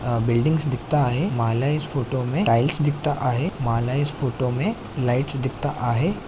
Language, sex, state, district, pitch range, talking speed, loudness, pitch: Marathi, male, Maharashtra, Sindhudurg, 120-145 Hz, 160 wpm, -22 LUFS, 130 Hz